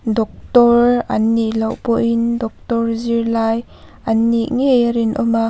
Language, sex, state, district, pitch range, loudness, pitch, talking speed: Mizo, female, Mizoram, Aizawl, 225-235 Hz, -16 LUFS, 230 Hz, 140 wpm